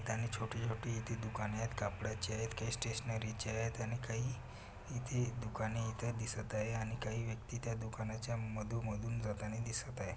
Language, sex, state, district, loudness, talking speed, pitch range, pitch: Marathi, male, Maharashtra, Pune, -41 LUFS, 160 wpm, 110-115 Hz, 115 Hz